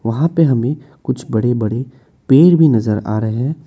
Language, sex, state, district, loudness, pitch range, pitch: Hindi, male, Assam, Kamrup Metropolitan, -15 LUFS, 115-150 Hz, 130 Hz